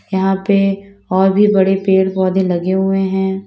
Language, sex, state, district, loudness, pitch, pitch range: Hindi, female, Uttar Pradesh, Lalitpur, -14 LUFS, 190 Hz, 190-195 Hz